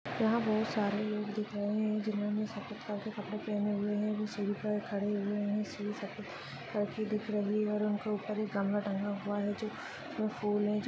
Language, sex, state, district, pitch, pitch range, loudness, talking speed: Hindi, female, Maharashtra, Nagpur, 210 Hz, 205-215 Hz, -35 LUFS, 210 wpm